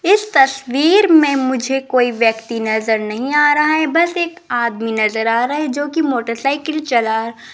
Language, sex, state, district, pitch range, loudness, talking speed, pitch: Hindi, female, Rajasthan, Jaipur, 230-305 Hz, -15 LUFS, 185 wpm, 270 Hz